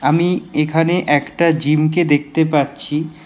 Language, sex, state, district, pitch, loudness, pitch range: Bengali, male, West Bengal, Alipurduar, 155 Hz, -16 LUFS, 145-165 Hz